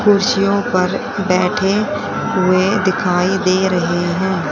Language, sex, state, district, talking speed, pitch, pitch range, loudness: Hindi, female, Haryana, Rohtak, 105 wpm, 190 Hz, 185-200 Hz, -16 LUFS